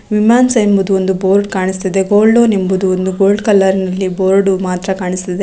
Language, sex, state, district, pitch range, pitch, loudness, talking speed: Kannada, female, Karnataka, Raichur, 190-205 Hz, 190 Hz, -12 LUFS, 165 wpm